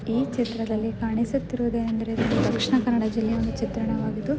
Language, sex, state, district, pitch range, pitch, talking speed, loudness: Kannada, female, Karnataka, Dakshina Kannada, 225-240 Hz, 230 Hz, 125 wpm, -25 LUFS